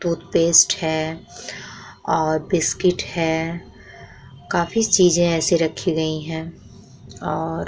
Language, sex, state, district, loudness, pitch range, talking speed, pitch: Hindi, female, Bihar, Vaishali, -19 LUFS, 145-170 Hz, 95 wpm, 160 Hz